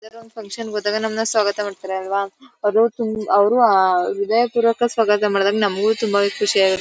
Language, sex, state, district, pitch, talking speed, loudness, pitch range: Kannada, female, Karnataka, Mysore, 210 Hz, 140 wpm, -18 LUFS, 200-225 Hz